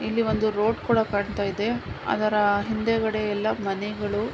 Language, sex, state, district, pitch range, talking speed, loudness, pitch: Kannada, female, Karnataka, Mysore, 205-220 Hz, 125 wpm, -25 LUFS, 215 Hz